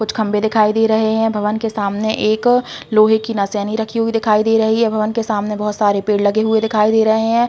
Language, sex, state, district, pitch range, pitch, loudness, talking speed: Hindi, female, Uttar Pradesh, Hamirpur, 210-225 Hz, 220 Hz, -16 LUFS, 250 wpm